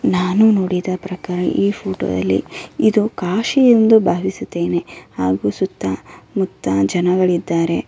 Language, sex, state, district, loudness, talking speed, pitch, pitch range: Kannada, female, Karnataka, Bellary, -17 LUFS, 90 wpm, 180 Hz, 165-200 Hz